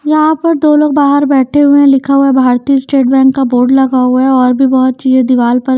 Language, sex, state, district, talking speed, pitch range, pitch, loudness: Hindi, female, Haryana, Jhajjar, 250 wpm, 260-285 Hz, 265 Hz, -9 LUFS